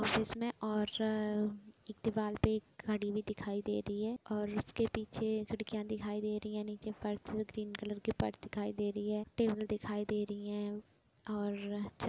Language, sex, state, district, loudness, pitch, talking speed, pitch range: Hindi, female, Uttar Pradesh, Budaun, -38 LUFS, 210 Hz, 190 wpm, 210-215 Hz